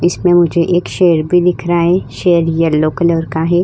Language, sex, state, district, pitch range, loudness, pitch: Hindi, female, Uttar Pradesh, Hamirpur, 165-175 Hz, -13 LUFS, 175 Hz